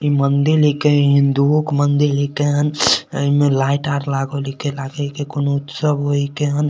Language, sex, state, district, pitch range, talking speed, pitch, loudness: Maithili, male, Bihar, Supaul, 140-145 Hz, 160 wpm, 145 Hz, -17 LUFS